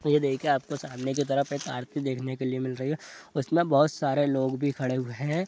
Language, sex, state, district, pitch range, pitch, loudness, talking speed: Hindi, male, Bihar, Jahanabad, 130-145 Hz, 140 Hz, -28 LUFS, 240 wpm